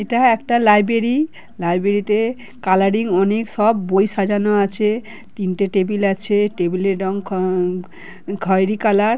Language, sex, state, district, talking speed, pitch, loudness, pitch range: Bengali, male, West Bengal, Kolkata, 145 wpm, 205 Hz, -18 LUFS, 190-220 Hz